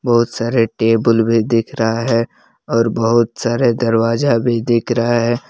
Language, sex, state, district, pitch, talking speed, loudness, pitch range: Hindi, male, Jharkhand, Palamu, 115 Hz, 165 wpm, -16 LUFS, 115-120 Hz